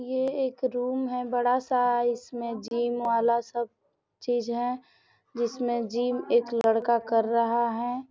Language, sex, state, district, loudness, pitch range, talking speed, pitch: Hindi, female, Bihar, Gopalganj, -27 LUFS, 235-250 Hz, 140 wpm, 240 Hz